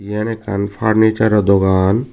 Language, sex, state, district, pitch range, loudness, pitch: Chakma, male, Tripura, Dhalai, 100-110 Hz, -15 LUFS, 105 Hz